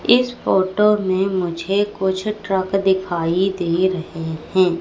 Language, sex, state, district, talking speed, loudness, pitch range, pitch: Hindi, female, Madhya Pradesh, Katni, 125 wpm, -19 LUFS, 175-195 Hz, 190 Hz